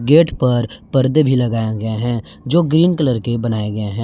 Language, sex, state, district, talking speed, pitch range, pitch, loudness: Hindi, male, Jharkhand, Garhwa, 205 wpm, 110-140 Hz, 120 Hz, -17 LUFS